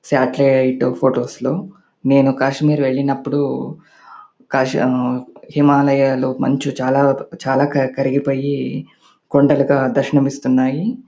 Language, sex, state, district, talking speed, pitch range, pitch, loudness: Telugu, male, Andhra Pradesh, Anantapur, 80 wpm, 135-145 Hz, 140 Hz, -17 LUFS